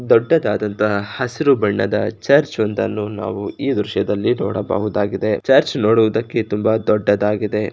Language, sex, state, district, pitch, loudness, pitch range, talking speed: Kannada, male, Karnataka, Shimoga, 105 Hz, -18 LUFS, 105-115 Hz, 95 wpm